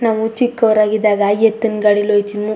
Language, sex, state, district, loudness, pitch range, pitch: Kannada, female, Karnataka, Chamarajanagar, -15 LUFS, 210-225 Hz, 215 Hz